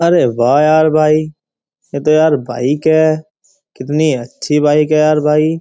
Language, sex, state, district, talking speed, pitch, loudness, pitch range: Hindi, male, Uttar Pradesh, Jyotiba Phule Nagar, 160 wpm, 155 Hz, -13 LUFS, 150-155 Hz